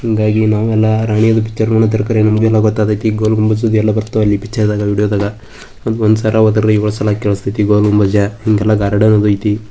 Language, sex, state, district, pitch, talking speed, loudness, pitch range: Kannada, male, Karnataka, Bijapur, 110 Hz, 150 wpm, -13 LUFS, 105-110 Hz